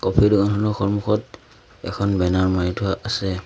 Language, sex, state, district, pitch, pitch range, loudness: Assamese, male, Assam, Sonitpur, 100 Hz, 95-105 Hz, -21 LUFS